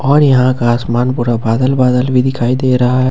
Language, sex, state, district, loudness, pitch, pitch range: Hindi, male, Jharkhand, Ranchi, -12 LUFS, 125 Hz, 120-130 Hz